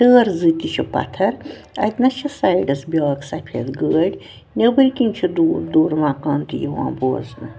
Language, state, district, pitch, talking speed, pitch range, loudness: Kashmiri, Punjab, Kapurthala, 180 Hz, 160 wpm, 150-250 Hz, -19 LUFS